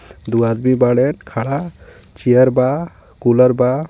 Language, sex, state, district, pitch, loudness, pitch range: Bhojpuri, male, Jharkhand, Palamu, 125 Hz, -16 LUFS, 120-130 Hz